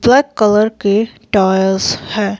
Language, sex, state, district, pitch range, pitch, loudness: Hindi, female, Himachal Pradesh, Shimla, 195-220 Hz, 210 Hz, -14 LUFS